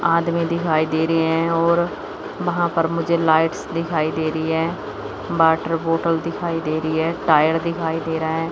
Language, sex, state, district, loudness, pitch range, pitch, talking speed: Hindi, female, Chandigarh, Chandigarh, -20 LUFS, 160-170 Hz, 165 Hz, 175 wpm